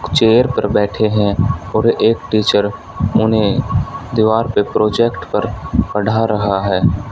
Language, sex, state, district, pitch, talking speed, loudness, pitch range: Hindi, male, Haryana, Rohtak, 110 Hz, 135 wpm, -15 LUFS, 100-115 Hz